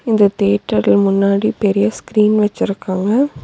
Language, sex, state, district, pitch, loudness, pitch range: Tamil, female, Tamil Nadu, Nilgiris, 205 Hz, -15 LUFS, 195-215 Hz